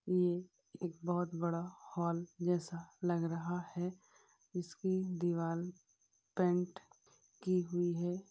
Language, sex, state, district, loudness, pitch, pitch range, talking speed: Hindi, female, Uttar Pradesh, Etah, -38 LUFS, 175 Hz, 170-180 Hz, 110 wpm